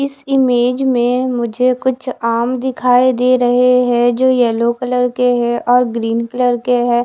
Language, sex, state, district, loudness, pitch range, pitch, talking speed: Hindi, female, Bihar, West Champaran, -14 LUFS, 240-255 Hz, 250 Hz, 170 wpm